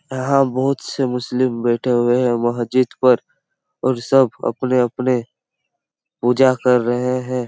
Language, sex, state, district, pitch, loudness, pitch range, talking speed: Hindi, male, Chhattisgarh, Raigarh, 125 Hz, -18 LUFS, 120-130 Hz, 130 wpm